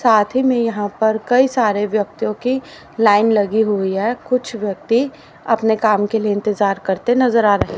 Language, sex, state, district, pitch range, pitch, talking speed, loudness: Hindi, female, Haryana, Rohtak, 205-245 Hz, 220 Hz, 185 wpm, -17 LUFS